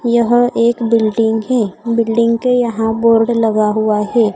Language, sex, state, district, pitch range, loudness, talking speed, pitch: Hindi, female, Odisha, Khordha, 220-235 Hz, -14 LUFS, 150 wpm, 230 Hz